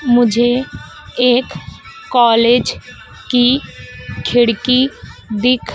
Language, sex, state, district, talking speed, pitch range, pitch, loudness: Hindi, female, Madhya Pradesh, Dhar, 65 wpm, 240-255 Hz, 245 Hz, -14 LUFS